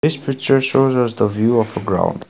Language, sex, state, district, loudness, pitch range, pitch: English, male, Assam, Kamrup Metropolitan, -16 LUFS, 110-135 Hz, 125 Hz